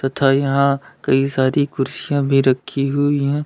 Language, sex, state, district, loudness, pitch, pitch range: Hindi, male, Uttar Pradesh, Lalitpur, -18 LUFS, 140 Hz, 135-145 Hz